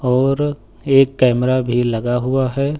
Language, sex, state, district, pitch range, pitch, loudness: Hindi, male, Uttar Pradesh, Lucknow, 120-135 Hz, 130 Hz, -17 LUFS